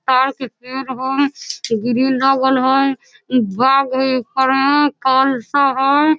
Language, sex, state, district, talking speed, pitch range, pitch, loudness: Maithili, female, Bihar, Samastipur, 135 wpm, 260-275 Hz, 265 Hz, -16 LUFS